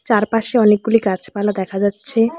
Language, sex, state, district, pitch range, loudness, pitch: Bengali, female, West Bengal, Alipurduar, 200-225 Hz, -17 LUFS, 215 Hz